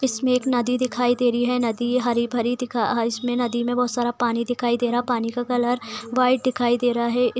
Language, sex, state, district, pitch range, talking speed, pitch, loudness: Hindi, female, Bihar, Purnia, 240-250 Hz, 245 wpm, 245 Hz, -22 LUFS